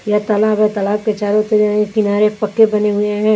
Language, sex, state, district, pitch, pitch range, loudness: Hindi, female, Chandigarh, Chandigarh, 210 Hz, 210-215 Hz, -15 LUFS